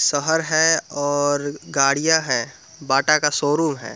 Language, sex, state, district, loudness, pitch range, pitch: Hindi, male, Bihar, Muzaffarpur, -19 LUFS, 145-160 Hz, 145 Hz